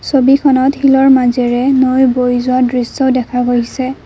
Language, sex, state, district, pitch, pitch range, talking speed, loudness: Assamese, female, Assam, Kamrup Metropolitan, 255 Hz, 245-265 Hz, 135 wpm, -12 LUFS